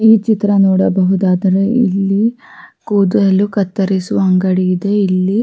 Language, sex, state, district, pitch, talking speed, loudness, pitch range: Kannada, female, Karnataka, Raichur, 195 Hz, 110 wpm, -13 LUFS, 190-205 Hz